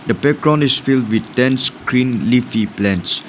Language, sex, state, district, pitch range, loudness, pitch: English, male, Nagaland, Dimapur, 110-135 Hz, -16 LUFS, 125 Hz